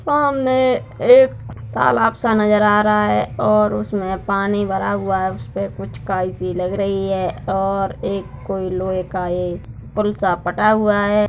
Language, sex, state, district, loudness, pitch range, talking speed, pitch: Hindi, female, Bihar, Darbhanga, -18 LUFS, 180-210 Hz, 170 wpm, 195 Hz